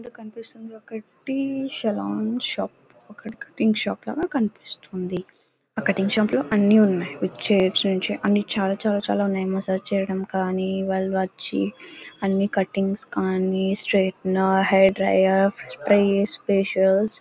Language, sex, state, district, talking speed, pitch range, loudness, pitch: Telugu, female, Karnataka, Bellary, 110 wpm, 190-220 Hz, -22 LUFS, 195 Hz